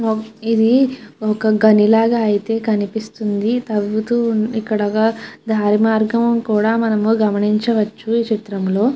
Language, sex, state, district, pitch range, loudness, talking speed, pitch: Telugu, female, Andhra Pradesh, Chittoor, 215-225 Hz, -17 LUFS, 100 wpm, 220 Hz